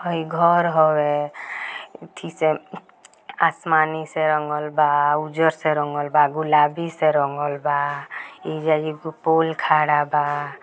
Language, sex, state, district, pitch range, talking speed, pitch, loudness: Bhojpuri, female, Bihar, Gopalganj, 145-160 Hz, 115 wpm, 155 Hz, -21 LUFS